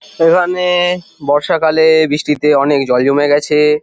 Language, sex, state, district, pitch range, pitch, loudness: Bengali, male, West Bengal, Jhargram, 145-165 Hz, 150 Hz, -12 LUFS